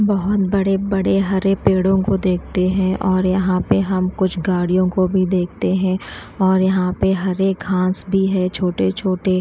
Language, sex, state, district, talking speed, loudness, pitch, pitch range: Hindi, female, Chhattisgarh, Raipur, 170 wpm, -18 LUFS, 185 Hz, 185-195 Hz